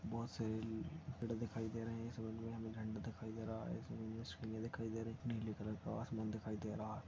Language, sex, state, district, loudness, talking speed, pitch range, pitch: Hindi, male, Chhattisgarh, Bastar, -46 LUFS, 145 wpm, 110-115 Hz, 110 Hz